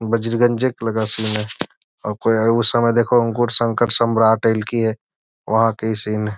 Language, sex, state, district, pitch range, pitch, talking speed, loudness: Magahi, male, Bihar, Gaya, 110-120 Hz, 115 Hz, 115 wpm, -18 LUFS